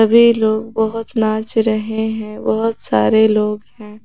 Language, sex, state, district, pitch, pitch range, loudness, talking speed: Hindi, female, Jharkhand, Garhwa, 220 Hz, 215-225 Hz, -16 LUFS, 150 wpm